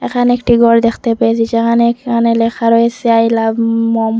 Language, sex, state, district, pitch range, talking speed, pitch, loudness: Bengali, female, Assam, Hailakandi, 230-235 Hz, 185 wpm, 230 Hz, -12 LUFS